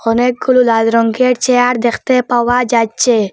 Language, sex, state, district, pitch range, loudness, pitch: Bengali, female, Assam, Hailakandi, 230-250 Hz, -12 LUFS, 245 Hz